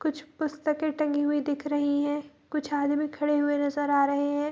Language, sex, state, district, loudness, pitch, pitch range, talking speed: Hindi, female, Bihar, Bhagalpur, -27 LUFS, 290 Hz, 290-300 Hz, 210 wpm